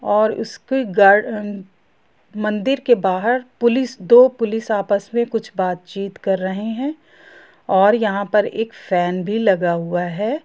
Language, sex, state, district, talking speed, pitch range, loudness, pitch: Hindi, female, Jharkhand, Sahebganj, 160 wpm, 195-240 Hz, -18 LUFS, 210 Hz